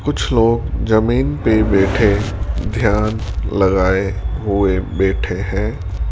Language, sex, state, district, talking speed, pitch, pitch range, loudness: Hindi, male, Rajasthan, Jaipur, 100 wpm, 100 Hz, 95-110 Hz, -17 LUFS